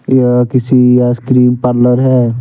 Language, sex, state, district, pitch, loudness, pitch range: Hindi, male, Jharkhand, Deoghar, 125 Hz, -10 LUFS, 125-130 Hz